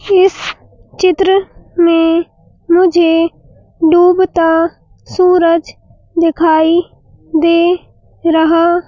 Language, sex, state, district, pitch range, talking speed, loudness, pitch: Hindi, female, Madhya Pradesh, Bhopal, 330-360 Hz, 60 wpm, -12 LUFS, 340 Hz